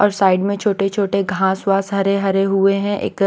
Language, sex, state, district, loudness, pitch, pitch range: Hindi, female, Maharashtra, Washim, -17 LUFS, 195 Hz, 195-200 Hz